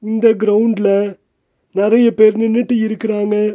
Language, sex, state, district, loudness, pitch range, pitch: Tamil, male, Tamil Nadu, Nilgiris, -14 LUFS, 210-225 Hz, 215 Hz